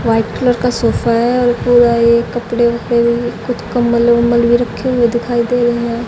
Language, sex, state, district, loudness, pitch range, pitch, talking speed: Hindi, female, Haryana, Jhajjar, -13 LUFS, 235-240 Hz, 235 Hz, 205 wpm